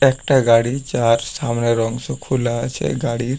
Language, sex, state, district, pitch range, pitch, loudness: Bengali, male, West Bengal, Paschim Medinipur, 115-135 Hz, 120 Hz, -18 LUFS